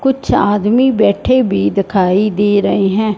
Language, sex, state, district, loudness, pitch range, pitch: Hindi, male, Punjab, Fazilka, -13 LUFS, 195-230 Hz, 205 Hz